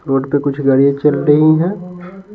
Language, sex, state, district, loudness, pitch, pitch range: Hindi, male, Bihar, Patna, -13 LUFS, 150 Hz, 140-180 Hz